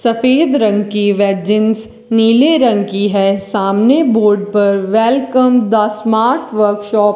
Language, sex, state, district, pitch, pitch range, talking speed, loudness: Hindi, female, Rajasthan, Bikaner, 215 Hz, 205-240 Hz, 140 wpm, -12 LUFS